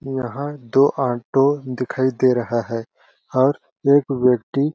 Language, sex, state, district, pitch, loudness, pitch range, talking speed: Hindi, male, Chhattisgarh, Balrampur, 130 Hz, -20 LUFS, 125-140 Hz, 125 wpm